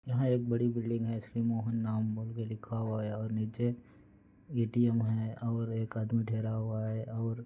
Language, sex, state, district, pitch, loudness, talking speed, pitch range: Hindi, male, Andhra Pradesh, Anantapur, 115 Hz, -34 LUFS, 90 wpm, 110-115 Hz